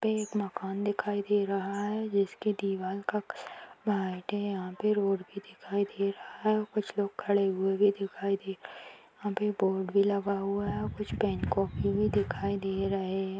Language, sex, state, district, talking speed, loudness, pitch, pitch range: Hindi, female, Maharashtra, Nagpur, 200 wpm, -31 LUFS, 200 Hz, 195-205 Hz